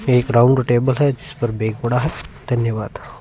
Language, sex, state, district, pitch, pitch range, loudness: Hindi, male, Punjab, Fazilka, 125 Hz, 120-130 Hz, -18 LUFS